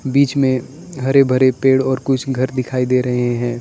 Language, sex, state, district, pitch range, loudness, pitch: Hindi, male, Arunachal Pradesh, Lower Dibang Valley, 125-135 Hz, -16 LUFS, 130 Hz